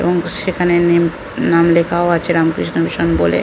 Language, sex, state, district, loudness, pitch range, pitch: Bengali, female, West Bengal, North 24 Parganas, -15 LUFS, 140-175 Hz, 170 Hz